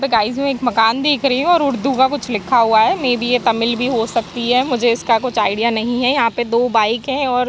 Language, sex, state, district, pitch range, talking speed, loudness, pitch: Hindi, female, Uttar Pradesh, Jyotiba Phule Nagar, 230-265 Hz, 270 wpm, -16 LUFS, 245 Hz